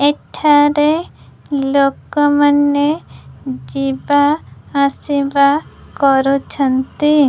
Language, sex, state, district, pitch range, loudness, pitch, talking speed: Odia, female, Odisha, Khordha, 275-290 Hz, -15 LUFS, 285 Hz, 50 wpm